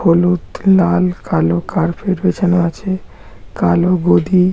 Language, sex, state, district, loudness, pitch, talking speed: Bengali, male, West Bengal, Jhargram, -15 LUFS, 175 Hz, 105 wpm